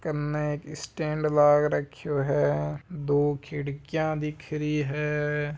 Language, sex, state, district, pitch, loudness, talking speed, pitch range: Marwari, male, Rajasthan, Nagaur, 150 Hz, -27 LUFS, 120 wpm, 145-150 Hz